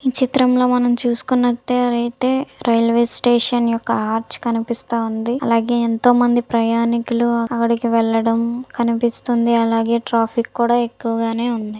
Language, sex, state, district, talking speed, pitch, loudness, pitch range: Telugu, female, Andhra Pradesh, Visakhapatnam, 90 wpm, 235 Hz, -17 LUFS, 230-245 Hz